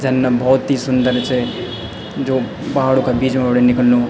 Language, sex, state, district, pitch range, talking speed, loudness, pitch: Garhwali, male, Uttarakhand, Tehri Garhwal, 125-130 Hz, 175 wpm, -16 LUFS, 125 Hz